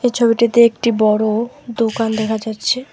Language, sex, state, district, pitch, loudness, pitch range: Bengali, female, West Bengal, Alipurduar, 230 Hz, -16 LUFS, 220-235 Hz